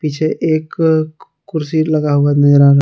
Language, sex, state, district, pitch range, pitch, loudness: Hindi, male, Jharkhand, Palamu, 145-160 Hz, 155 Hz, -14 LUFS